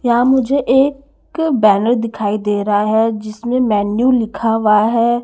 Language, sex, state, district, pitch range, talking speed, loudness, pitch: Hindi, female, Haryana, Charkhi Dadri, 215-255 Hz, 160 wpm, -15 LUFS, 230 Hz